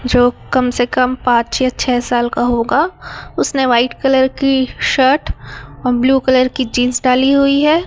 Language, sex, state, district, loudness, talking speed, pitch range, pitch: Hindi, male, Chhattisgarh, Raipur, -14 LUFS, 175 wpm, 245-270 Hz, 255 Hz